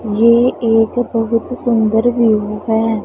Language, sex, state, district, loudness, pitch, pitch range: Hindi, female, Punjab, Pathankot, -14 LUFS, 225 Hz, 220-235 Hz